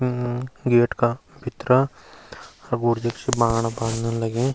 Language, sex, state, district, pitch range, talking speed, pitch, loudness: Garhwali, male, Uttarakhand, Uttarkashi, 115-125 Hz, 80 wpm, 120 Hz, -23 LUFS